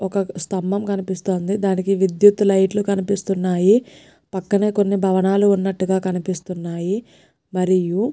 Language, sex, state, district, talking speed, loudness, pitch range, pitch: Telugu, female, Telangana, Nalgonda, 95 wpm, -19 LUFS, 185-200 Hz, 195 Hz